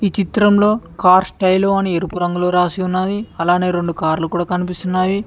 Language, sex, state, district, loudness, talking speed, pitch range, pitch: Telugu, male, Telangana, Mahabubabad, -16 LUFS, 160 wpm, 175-195 Hz, 185 Hz